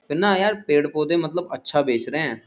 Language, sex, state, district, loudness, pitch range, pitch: Hindi, male, Uttar Pradesh, Jyotiba Phule Nagar, -21 LUFS, 150-200 Hz, 170 Hz